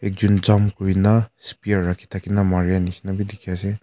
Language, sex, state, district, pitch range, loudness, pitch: Nagamese, male, Nagaland, Kohima, 95-105 Hz, -20 LUFS, 100 Hz